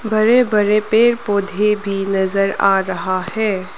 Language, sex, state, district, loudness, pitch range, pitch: Hindi, female, Arunachal Pradesh, Lower Dibang Valley, -16 LUFS, 195-215 Hz, 205 Hz